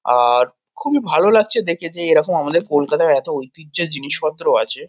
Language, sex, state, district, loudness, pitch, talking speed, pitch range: Bengali, male, West Bengal, Kolkata, -16 LUFS, 160 Hz, 160 wpm, 140-210 Hz